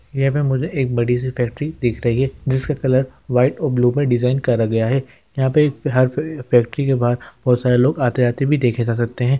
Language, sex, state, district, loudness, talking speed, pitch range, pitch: Hindi, male, Uttar Pradesh, Hamirpur, -18 LUFS, 225 wpm, 120-135 Hz, 130 Hz